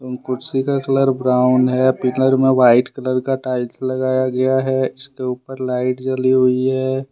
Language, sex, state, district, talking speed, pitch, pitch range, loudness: Hindi, male, Jharkhand, Deoghar, 160 wpm, 130 Hz, 125-130 Hz, -17 LUFS